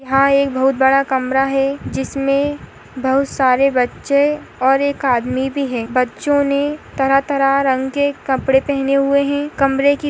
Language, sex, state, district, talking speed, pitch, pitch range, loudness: Hindi, female, Karnataka, Dakshina Kannada, 155 wpm, 275 Hz, 265-280 Hz, -16 LUFS